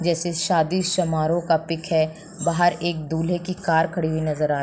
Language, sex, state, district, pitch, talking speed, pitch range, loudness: Hindi, female, Bihar, Samastipur, 165 Hz, 210 wpm, 160-175 Hz, -22 LUFS